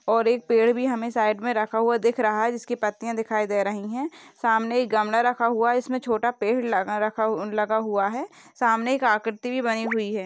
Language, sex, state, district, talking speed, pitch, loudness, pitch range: Hindi, female, Maharashtra, Pune, 240 wpm, 230 Hz, -24 LUFS, 215-240 Hz